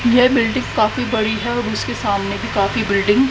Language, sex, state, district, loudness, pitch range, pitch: Hindi, female, Haryana, Rohtak, -18 LUFS, 205-245 Hz, 225 Hz